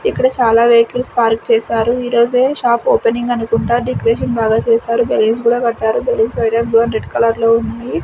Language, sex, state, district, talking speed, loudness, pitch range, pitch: Telugu, female, Andhra Pradesh, Sri Satya Sai, 165 wpm, -14 LUFS, 230-245 Hz, 235 Hz